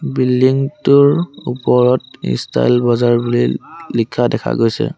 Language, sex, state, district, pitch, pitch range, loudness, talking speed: Assamese, male, Assam, Sonitpur, 125 Hz, 115-135 Hz, -15 LUFS, 110 wpm